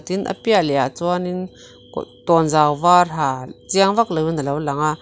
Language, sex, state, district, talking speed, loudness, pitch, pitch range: Mizo, female, Mizoram, Aizawl, 180 wpm, -18 LUFS, 160 Hz, 140-180 Hz